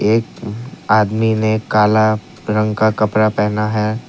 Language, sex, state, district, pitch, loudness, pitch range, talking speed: Hindi, male, Assam, Kamrup Metropolitan, 110 Hz, -16 LUFS, 105-110 Hz, 130 wpm